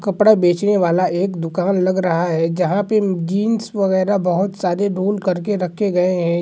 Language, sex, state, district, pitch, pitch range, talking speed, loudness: Hindi, male, Bihar, Gaya, 185 Hz, 180-205 Hz, 180 wpm, -18 LUFS